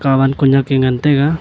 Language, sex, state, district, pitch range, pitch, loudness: Wancho, male, Arunachal Pradesh, Longding, 135-145 Hz, 135 Hz, -13 LUFS